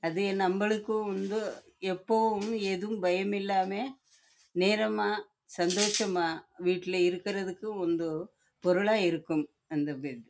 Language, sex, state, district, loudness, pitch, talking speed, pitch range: Tamil, female, Karnataka, Chamarajanagar, -30 LUFS, 190 Hz, 70 wpm, 175-210 Hz